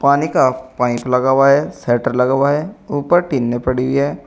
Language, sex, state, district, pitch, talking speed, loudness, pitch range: Hindi, male, Uttar Pradesh, Saharanpur, 135 Hz, 180 wpm, -16 LUFS, 125-145 Hz